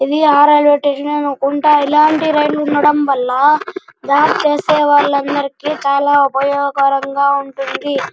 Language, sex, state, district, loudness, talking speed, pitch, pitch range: Telugu, male, Andhra Pradesh, Anantapur, -13 LUFS, 105 wpm, 290 Hz, 280-295 Hz